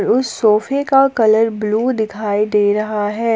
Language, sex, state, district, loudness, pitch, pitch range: Hindi, female, Jharkhand, Palamu, -16 LUFS, 220 Hz, 210-235 Hz